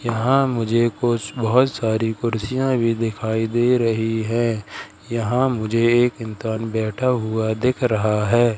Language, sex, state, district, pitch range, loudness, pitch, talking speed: Hindi, male, Madhya Pradesh, Katni, 110-120 Hz, -20 LUFS, 115 Hz, 135 wpm